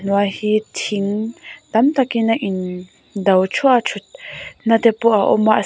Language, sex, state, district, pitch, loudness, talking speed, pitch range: Mizo, female, Mizoram, Aizawl, 215 Hz, -17 LUFS, 170 wpm, 200-235 Hz